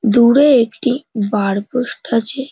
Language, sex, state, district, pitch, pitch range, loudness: Bengali, male, West Bengal, North 24 Parganas, 235 Hz, 220-260 Hz, -15 LUFS